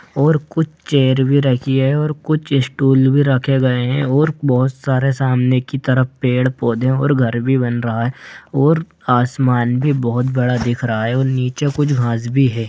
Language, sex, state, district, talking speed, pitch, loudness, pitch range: Hindi, male, Bihar, Darbhanga, 190 wpm, 130 Hz, -16 LUFS, 125-140 Hz